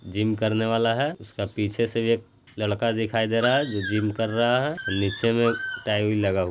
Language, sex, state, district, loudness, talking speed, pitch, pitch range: Hindi, male, Bihar, Jahanabad, -24 LUFS, 230 wpm, 110 Hz, 105-115 Hz